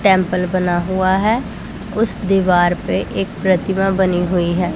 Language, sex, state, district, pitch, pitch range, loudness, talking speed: Hindi, female, Punjab, Pathankot, 190 Hz, 180-195 Hz, -17 LUFS, 150 wpm